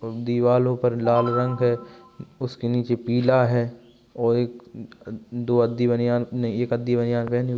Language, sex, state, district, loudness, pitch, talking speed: Hindi, male, Uttar Pradesh, Hamirpur, -23 LUFS, 120 Hz, 135 wpm